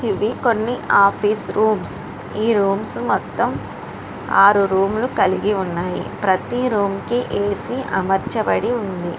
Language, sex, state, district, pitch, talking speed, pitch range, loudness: Telugu, female, Andhra Pradesh, Srikakulam, 200 Hz, 110 wpm, 195-220 Hz, -19 LUFS